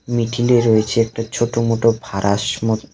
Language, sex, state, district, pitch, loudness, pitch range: Bengali, male, West Bengal, Alipurduar, 115 Hz, -18 LUFS, 110-115 Hz